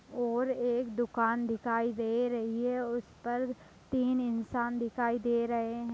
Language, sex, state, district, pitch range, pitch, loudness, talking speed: Hindi, female, Bihar, Begusarai, 230-245 Hz, 240 Hz, -32 LUFS, 150 wpm